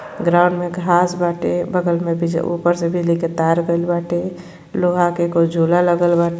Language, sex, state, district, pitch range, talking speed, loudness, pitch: Bhojpuri, female, Uttar Pradesh, Gorakhpur, 170-175 Hz, 190 wpm, -18 LUFS, 175 Hz